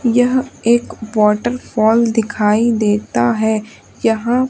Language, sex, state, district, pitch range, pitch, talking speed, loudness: Hindi, female, Madhya Pradesh, Umaria, 215-240 Hz, 225 Hz, 95 wpm, -16 LUFS